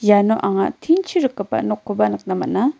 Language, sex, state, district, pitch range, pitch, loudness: Garo, female, Meghalaya, West Garo Hills, 185-270 Hz, 205 Hz, -19 LUFS